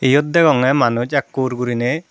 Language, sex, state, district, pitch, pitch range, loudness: Chakma, female, Tripura, Dhalai, 135 Hz, 125-150 Hz, -16 LUFS